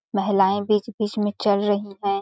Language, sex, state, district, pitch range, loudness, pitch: Hindi, female, Chhattisgarh, Balrampur, 200-210 Hz, -22 LUFS, 205 Hz